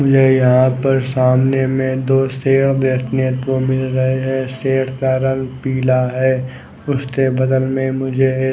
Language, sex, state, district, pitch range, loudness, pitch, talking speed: Hindi, male, Odisha, Khordha, 130-135 Hz, -16 LUFS, 130 Hz, 155 wpm